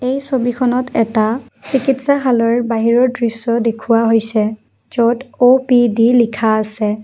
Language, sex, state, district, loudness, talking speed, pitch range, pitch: Assamese, female, Assam, Kamrup Metropolitan, -15 LUFS, 100 wpm, 225-250 Hz, 235 Hz